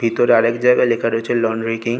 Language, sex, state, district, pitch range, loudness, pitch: Bengali, male, West Bengal, North 24 Parganas, 115-120 Hz, -16 LUFS, 115 Hz